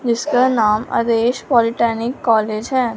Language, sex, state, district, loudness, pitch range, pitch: Hindi, male, Punjab, Fazilka, -17 LUFS, 225-250 Hz, 235 Hz